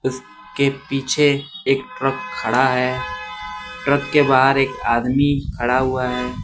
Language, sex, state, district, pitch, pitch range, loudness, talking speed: Hindi, male, Bihar, West Champaran, 130 Hz, 125-140 Hz, -19 LUFS, 130 wpm